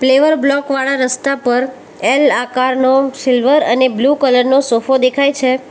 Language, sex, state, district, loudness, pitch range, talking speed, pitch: Gujarati, female, Gujarat, Valsad, -13 LUFS, 255-275 Hz, 160 wpm, 265 Hz